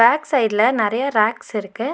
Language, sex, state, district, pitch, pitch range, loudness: Tamil, female, Tamil Nadu, Nilgiris, 230 Hz, 215-270 Hz, -19 LUFS